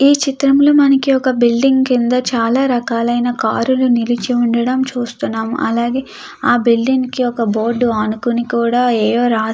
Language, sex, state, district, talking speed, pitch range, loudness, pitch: Telugu, female, Andhra Pradesh, Krishna, 150 wpm, 235-260 Hz, -15 LUFS, 245 Hz